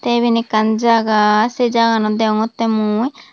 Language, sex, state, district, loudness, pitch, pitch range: Chakma, female, Tripura, Dhalai, -15 LUFS, 225 Hz, 215-235 Hz